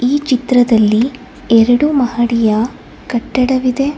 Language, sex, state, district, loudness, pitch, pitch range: Kannada, female, Karnataka, Bangalore, -13 LUFS, 250 Hz, 235-260 Hz